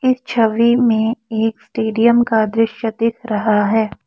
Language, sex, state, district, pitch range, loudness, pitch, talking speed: Hindi, female, Assam, Kamrup Metropolitan, 220-235 Hz, -16 LUFS, 225 Hz, 135 wpm